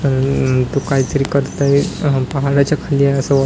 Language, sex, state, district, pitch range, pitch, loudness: Marathi, male, Maharashtra, Washim, 135-140 Hz, 140 Hz, -16 LUFS